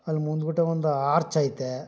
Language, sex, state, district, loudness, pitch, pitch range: Kannada, male, Karnataka, Mysore, -25 LUFS, 155 Hz, 140-160 Hz